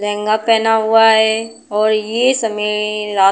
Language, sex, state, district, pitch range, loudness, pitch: Hindi, female, Uttar Pradesh, Budaun, 210-225 Hz, -14 LUFS, 220 Hz